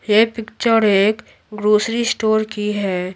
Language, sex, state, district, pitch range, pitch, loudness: Hindi, female, Bihar, Patna, 210-225 Hz, 215 Hz, -17 LUFS